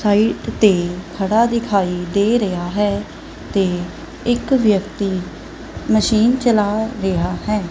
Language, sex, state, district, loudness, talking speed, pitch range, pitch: Punjabi, female, Punjab, Kapurthala, -18 LUFS, 110 wpm, 185-220 Hz, 205 Hz